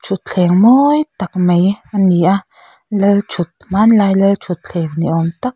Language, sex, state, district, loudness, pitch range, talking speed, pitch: Mizo, female, Mizoram, Aizawl, -14 LUFS, 180-210 Hz, 130 wpm, 195 Hz